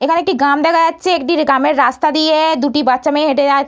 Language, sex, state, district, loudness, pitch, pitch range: Bengali, female, West Bengal, Purulia, -13 LUFS, 300 Hz, 280-330 Hz